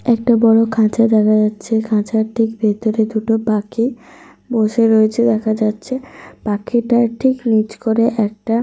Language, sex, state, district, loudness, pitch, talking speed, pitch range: Bengali, female, Jharkhand, Sahebganj, -16 LUFS, 225 Hz, 130 wpm, 215-235 Hz